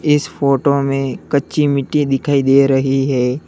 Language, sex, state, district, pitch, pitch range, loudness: Hindi, male, Uttar Pradesh, Lalitpur, 140 Hz, 135-145 Hz, -15 LUFS